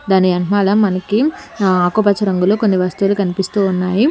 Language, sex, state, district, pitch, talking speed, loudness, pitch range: Telugu, female, Telangana, Hyderabad, 195 Hz, 145 wpm, -15 LUFS, 185-205 Hz